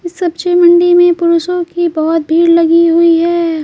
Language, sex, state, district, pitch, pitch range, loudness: Hindi, female, Bihar, Patna, 340 Hz, 335-350 Hz, -10 LUFS